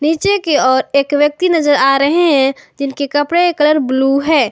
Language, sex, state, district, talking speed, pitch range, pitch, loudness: Hindi, female, Jharkhand, Garhwa, 200 wpm, 275-320 Hz, 290 Hz, -13 LUFS